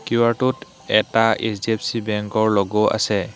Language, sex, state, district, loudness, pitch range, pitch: Assamese, male, Assam, Hailakandi, -20 LUFS, 105-115 Hz, 110 Hz